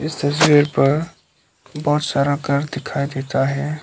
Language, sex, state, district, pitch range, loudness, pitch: Hindi, male, Arunachal Pradesh, Lower Dibang Valley, 140-150 Hz, -19 LUFS, 145 Hz